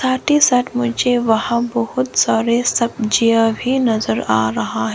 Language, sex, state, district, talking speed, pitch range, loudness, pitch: Hindi, female, Arunachal Pradesh, Lower Dibang Valley, 145 wpm, 225-250 Hz, -16 LUFS, 235 Hz